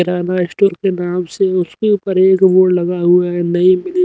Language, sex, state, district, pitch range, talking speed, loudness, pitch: Hindi, male, Haryana, Rohtak, 175-190 Hz, 175 wpm, -14 LUFS, 185 Hz